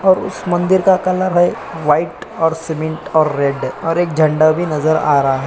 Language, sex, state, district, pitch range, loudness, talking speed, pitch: Hindi, male, Uttar Pradesh, Hamirpur, 155-175 Hz, -15 LUFS, 195 wpm, 160 Hz